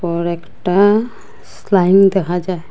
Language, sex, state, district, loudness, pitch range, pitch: Bengali, female, Assam, Hailakandi, -15 LUFS, 175-195 Hz, 185 Hz